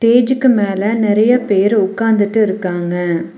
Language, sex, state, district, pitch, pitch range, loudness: Tamil, female, Tamil Nadu, Nilgiris, 210 Hz, 195-225 Hz, -14 LUFS